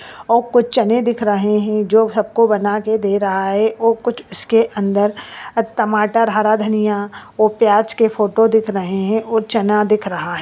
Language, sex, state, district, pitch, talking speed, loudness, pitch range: Hindi, female, Andhra Pradesh, Anantapur, 215 Hz, 160 wpm, -16 LUFS, 205-225 Hz